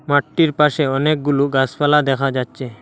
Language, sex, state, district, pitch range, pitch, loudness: Bengali, male, Assam, Hailakandi, 135-150 Hz, 145 Hz, -17 LUFS